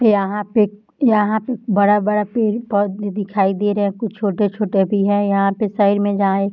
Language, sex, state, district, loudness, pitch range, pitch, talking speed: Hindi, female, Bihar, Darbhanga, -18 LUFS, 200-215 Hz, 205 Hz, 200 wpm